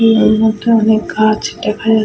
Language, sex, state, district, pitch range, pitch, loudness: Bengali, female, West Bengal, Malda, 215-225 Hz, 220 Hz, -13 LUFS